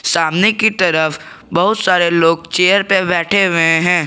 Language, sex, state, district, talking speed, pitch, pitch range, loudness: Hindi, male, Jharkhand, Garhwa, 160 wpm, 180 Hz, 165-195 Hz, -13 LUFS